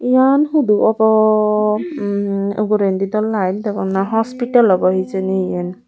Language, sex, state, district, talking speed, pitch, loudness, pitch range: Chakma, female, Tripura, Unakoti, 135 wpm, 210 Hz, -16 LUFS, 190-220 Hz